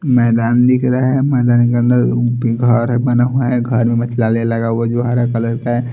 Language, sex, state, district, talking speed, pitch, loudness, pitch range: Hindi, male, Chhattisgarh, Raipur, 230 wpm, 120 Hz, -14 LUFS, 115-125 Hz